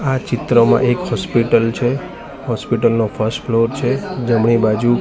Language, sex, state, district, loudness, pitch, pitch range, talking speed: Gujarati, male, Gujarat, Gandhinagar, -16 LUFS, 120 Hz, 115-125 Hz, 145 wpm